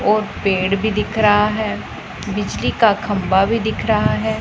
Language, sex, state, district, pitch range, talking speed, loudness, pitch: Hindi, female, Punjab, Pathankot, 200-215 Hz, 175 wpm, -18 LUFS, 210 Hz